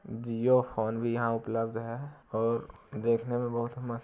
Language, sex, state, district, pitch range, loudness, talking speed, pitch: Hindi, male, Bihar, Jamui, 115-120 Hz, -31 LUFS, 180 wpm, 115 Hz